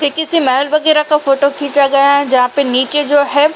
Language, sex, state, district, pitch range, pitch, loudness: Hindi, female, Uttar Pradesh, Jalaun, 275-300 Hz, 285 Hz, -12 LUFS